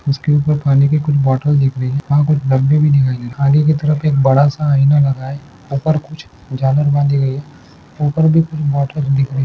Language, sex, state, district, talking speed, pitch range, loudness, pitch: Hindi, male, Andhra Pradesh, Chittoor, 255 wpm, 135-150 Hz, -14 LUFS, 145 Hz